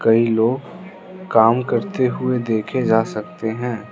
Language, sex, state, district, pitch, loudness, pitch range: Hindi, male, Arunachal Pradesh, Lower Dibang Valley, 115 Hz, -19 LUFS, 110-130 Hz